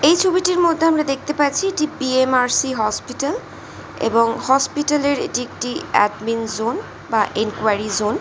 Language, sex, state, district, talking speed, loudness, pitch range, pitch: Bengali, female, West Bengal, North 24 Parganas, 160 wpm, -19 LUFS, 230-300 Hz, 265 Hz